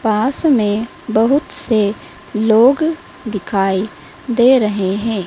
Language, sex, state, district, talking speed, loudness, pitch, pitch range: Hindi, female, Madhya Pradesh, Dhar, 100 wpm, -16 LUFS, 225 Hz, 210-270 Hz